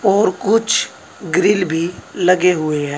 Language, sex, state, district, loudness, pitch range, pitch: Hindi, male, Uttar Pradesh, Saharanpur, -16 LUFS, 160-200 Hz, 180 Hz